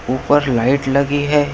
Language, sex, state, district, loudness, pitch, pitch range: Hindi, male, Maharashtra, Pune, -16 LUFS, 140 Hz, 130-145 Hz